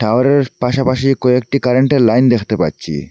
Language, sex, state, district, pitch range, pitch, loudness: Bengali, male, Assam, Hailakandi, 120-135 Hz, 125 Hz, -14 LUFS